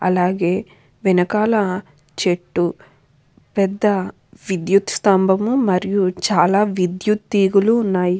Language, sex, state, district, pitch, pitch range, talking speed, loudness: Telugu, female, Andhra Pradesh, Krishna, 190 Hz, 180-205 Hz, 50 wpm, -18 LUFS